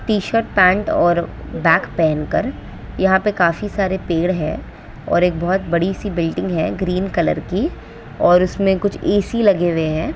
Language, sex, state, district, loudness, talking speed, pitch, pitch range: Hindi, female, West Bengal, Kolkata, -18 LUFS, 165 wpm, 185 Hz, 170-195 Hz